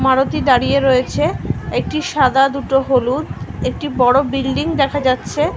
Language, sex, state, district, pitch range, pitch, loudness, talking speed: Bengali, female, West Bengal, North 24 Parganas, 260-280 Hz, 270 Hz, -16 LUFS, 130 wpm